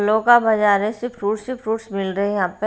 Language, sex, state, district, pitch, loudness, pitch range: Hindi, female, Haryana, Rohtak, 215 Hz, -19 LUFS, 200-225 Hz